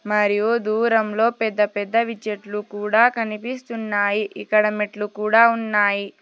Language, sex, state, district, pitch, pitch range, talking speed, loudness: Telugu, female, Telangana, Hyderabad, 215 Hz, 210-230 Hz, 105 wpm, -20 LUFS